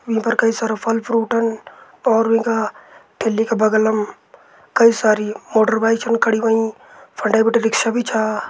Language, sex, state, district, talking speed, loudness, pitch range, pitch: Garhwali, male, Uttarakhand, Tehri Garhwal, 160 wpm, -18 LUFS, 220-230 Hz, 225 Hz